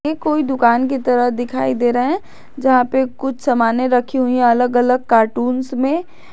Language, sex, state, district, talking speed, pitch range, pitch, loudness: Hindi, female, Jharkhand, Garhwa, 190 wpm, 245-270 Hz, 255 Hz, -16 LUFS